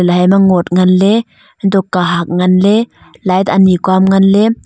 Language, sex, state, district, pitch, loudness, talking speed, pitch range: Wancho, female, Arunachal Pradesh, Longding, 190 Hz, -11 LUFS, 130 wpm, 180-195 Hz